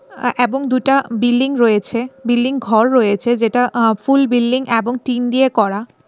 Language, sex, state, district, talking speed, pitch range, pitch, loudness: Bengali, female, Tripura, West Tripura, 160 wpm, 230-255 Hz, 245 Hz, -15 LUFS